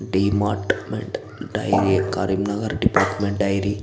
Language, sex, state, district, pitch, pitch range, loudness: Telugu, male, Andhra Pradesh, Visakhapatnam, 100 Hz, 100-105 Hz, -22 LUFS